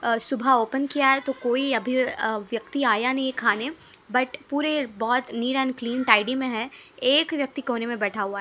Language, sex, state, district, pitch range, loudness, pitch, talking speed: Hindi, female, Haryana, Charkhi Dadri, 230-270 Hz, -24 LUFS, 255 Hz, 185 wpm